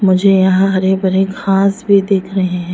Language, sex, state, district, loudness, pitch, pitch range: Hindi, female, Arunachal Pradesh, Lower Dibang Valley, -13 LUFS, 190 Hz, 190-195 Hz